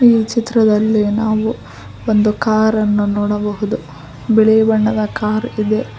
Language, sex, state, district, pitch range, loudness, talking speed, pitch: Kannada, female, Karnataka, Koppal, 210-220 Hz, -15 LUFS, 100 wpm, 215 Hz